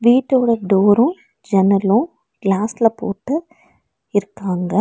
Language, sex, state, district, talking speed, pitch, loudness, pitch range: Tamil, female, Tamil Nadu, Nilgiris, 75 wpm, 215 Hz, -17 LUFS, 200-255 Hz